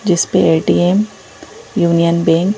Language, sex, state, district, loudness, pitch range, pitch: Hindi, female, Madhya Pradesh, Bhopal, -14 LUFS, 170-190 Hz, 175 Hz